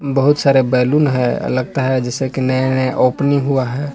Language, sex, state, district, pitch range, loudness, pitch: Hindi, male, Jharkhand, Palamu, 130-140 Hz, -16 LUFS, 130 Hz